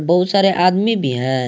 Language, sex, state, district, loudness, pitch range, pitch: Hindi, male, Jharkhand, Garhwa, -16 LUFS, 130-195 Hz, 180 Hz